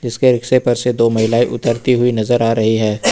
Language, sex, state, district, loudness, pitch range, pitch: Hindi, male, Uttar Pradesh, Lucknow, -15 LUFS, 115-125 Hz, 120 Hz